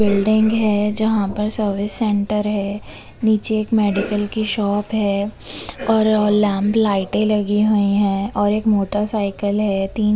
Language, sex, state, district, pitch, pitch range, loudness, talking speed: Hindi, female, Bihar, Begusarai, 210 Hz, 205-215 Hz, -18 LUFS, 140 wpm